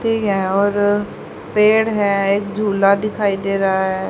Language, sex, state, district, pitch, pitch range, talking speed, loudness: Hindi, female, Haryana, Rohtak, 200 Hz, 195-210 Hz, 145 wpm, -17 LUFS